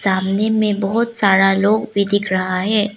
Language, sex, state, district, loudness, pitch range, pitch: Hindi, female, Arunachal Pradesh, Lower Dibang Valley, -16 LUFS, 195-215 Hz, 200 Hz